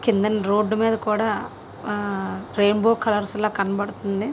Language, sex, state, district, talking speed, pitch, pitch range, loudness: Telugu, female, Andhra Pradesh, Visakhapatnam, 110 wpm, 210 Hz, 205-215 Hz, -22 LUFS